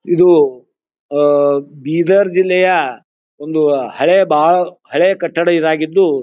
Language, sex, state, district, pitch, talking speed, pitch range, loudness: Kannada, male, Karnataka, Bijapur, 170 Hz, 105 wpm, 150-195 Hz, -13 LUFS